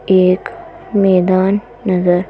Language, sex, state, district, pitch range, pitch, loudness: Hindi, female, Madhya Pradesh, Bhopal, 185-200 Hz, 185 Hz, -14 LUFS